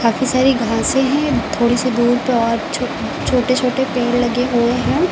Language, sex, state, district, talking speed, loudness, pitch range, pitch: Hindi, female, Uttar Pradesh, Lucknow, 190 wpm, -16 LUFS, 235-260 Hz, 245 Hz